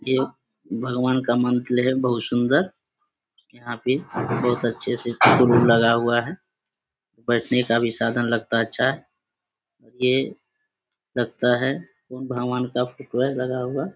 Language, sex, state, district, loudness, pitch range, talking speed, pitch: Hindi, male, Bihar, Samastipur, -22 LUFS, 120-130 Hz, 155 wpm, 125 Hz